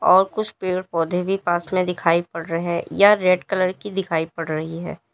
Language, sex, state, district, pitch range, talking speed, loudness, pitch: Hindi, female, Uttar Pradesh, Lalitpur, 165-190 Hz, 210 wpm, -21 LUFS, 180 Hz